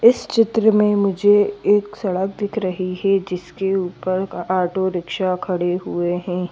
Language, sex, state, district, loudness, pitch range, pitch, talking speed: Hindi, female, Madhya Pradesh, Bhopal, -19 LUFS, 180-205 Hz, 190 Hz, 145 wpm